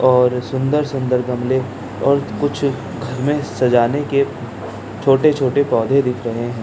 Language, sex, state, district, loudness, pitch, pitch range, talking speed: Hindi, male, Bihar, Jamui, -18 LUFS, 130 Hz, 120-140 Hz, 125 wpm